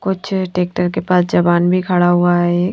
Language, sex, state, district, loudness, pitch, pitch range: Hindi, female, Haryana, Jhajjar, -15 LUFS, 180 Hz, 175-185 Hz